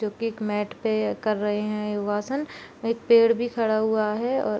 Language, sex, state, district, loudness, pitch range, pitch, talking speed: Hindi, female, Bihar, Supaul, -24 LUFS, 210-230 Hz, 215 Hz, 220 wpm